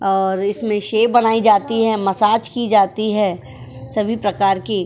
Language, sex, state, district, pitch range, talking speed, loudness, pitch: Hindi, female, Uttar Pradesh, Jyotiba Phule Nagar, 195-220 Hz, 85 wpm, -17 LUFS, 210 Hz